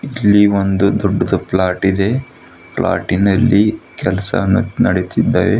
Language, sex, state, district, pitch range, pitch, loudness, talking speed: Kannada, female, Karnataka, Bidar, 95-105 Hz, 100 Hz, -15 LUFS, 95 wpm